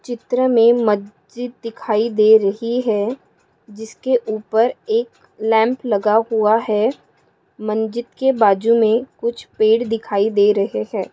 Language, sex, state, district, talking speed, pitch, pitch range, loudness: Hindi, female, Maharashtra, Pune, 125 wpm, 225 Hz, 215-240 Hz, -17 LUFS